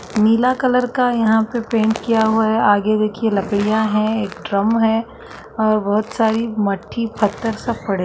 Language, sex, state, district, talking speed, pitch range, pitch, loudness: Hindi, female, Uttarakhand, Tehri Garhwal, 185 wpm, 210-225 Hz, 220 Hz, -18 LUFS